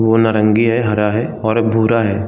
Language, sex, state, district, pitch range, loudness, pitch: Hindi, male, Bihar, Saran, 105-115 Hz, -15 LUFS, 110 Hz